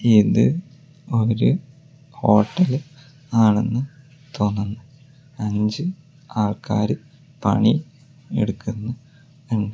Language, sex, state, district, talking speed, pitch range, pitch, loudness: Malayalam, male, Kerala, Kozhikode, 60 wpm, 110-145 Hz, 135 Hz, -21 LUFS